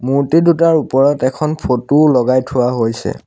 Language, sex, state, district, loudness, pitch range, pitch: Assamese, male, Assam, Sonitpur, -14 LUFS, 125-155 Hz, 135 Hz